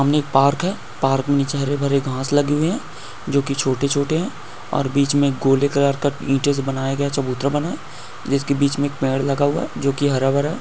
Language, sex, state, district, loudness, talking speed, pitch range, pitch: Hindi, male, West Bengal, North 24 Parganas, -20 LUFS, 220 wpm, 135-145 Hz, 140 Hz